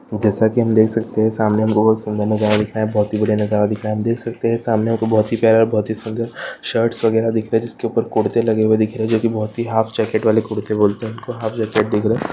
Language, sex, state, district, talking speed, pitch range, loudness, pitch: Hindi, female, Rajasthan, Churu, 285 wpm, 110-115 Hz, -18 LUFS, 110 Hz